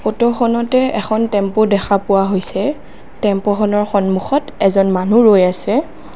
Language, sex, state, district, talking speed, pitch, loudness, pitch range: Assamese, female, Assam, Kamrup Metropolitan, 115 wpm, 210 Hz, -15 LUFS, 195-235 Hz